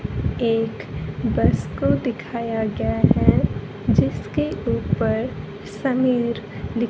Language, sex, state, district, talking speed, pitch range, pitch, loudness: Hindi, female, Haryana, Jhajjar, 85 wpm, 220-240 Hz, 230 Hz, -22 LUFS